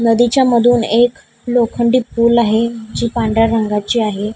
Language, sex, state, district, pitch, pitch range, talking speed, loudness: Marathi, female, Maharashtra, Gondia, 235 Hz, 225-240 Hz, 140 wpm, -14 LUFS